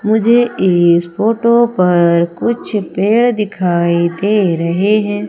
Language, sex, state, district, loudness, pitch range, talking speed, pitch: Hindi, female, Madhya Pradesh, Umaria, -13 LUFS, 170-220 Hz, 115 wpm, 200 Hz